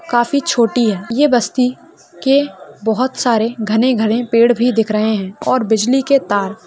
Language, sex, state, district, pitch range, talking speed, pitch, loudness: Hindi, female, Maharashtra, Pune, 220-255 Hz, 170 wpm, 235 Hz, -15 LUFS